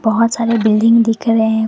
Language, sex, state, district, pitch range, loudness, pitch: Hindi, female, Assam, Kamrup Metropolitan, 220-230 Hz, -13 LUFS, 225 Hz